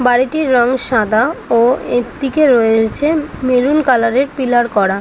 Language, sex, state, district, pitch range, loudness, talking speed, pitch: Bengali, female, West Bengal, Dakshin Dinajpur, 235-270 Hz, -14 LUFS, 145 wpm, 250 Hz